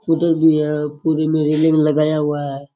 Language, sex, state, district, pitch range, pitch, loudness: Rajasthani, male, Rajasthan, Churu, 150-160 Hz, 155 Hz, -17 LUFS